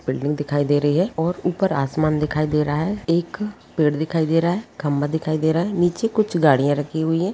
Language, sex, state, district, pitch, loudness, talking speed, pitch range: Hindi, female, Bihar, Araria, 160 Hz, -21 LUFS, 235 wpm, 150-175 Hz